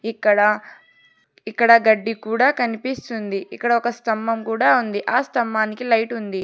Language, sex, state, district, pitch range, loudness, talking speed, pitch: Telugu, female, Telangana, Hyderabad, 220-240 Hz, -19 LUFS, 130 wpm, 230 Hz